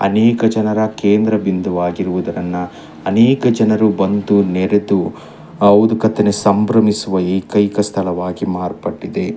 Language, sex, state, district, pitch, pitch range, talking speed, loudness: Kannada, male, Karnataka, Chamarajanagar, 105 Hz, 95-110 Hz, 95 wpm, -15 LUFS